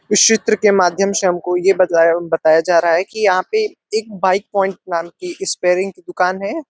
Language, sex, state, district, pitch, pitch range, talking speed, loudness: Hindi, male, Uttar Pradesh, Deoria, 185 Hz, 175-210 Hz, 225 wpm, -16 LUFS